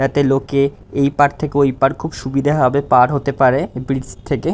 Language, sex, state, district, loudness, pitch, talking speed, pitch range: Bengali, male, West Bengal, Dakshin Dinajpur, -16 LUFS, 140 Hz, 170 wpm, 130-145 Hz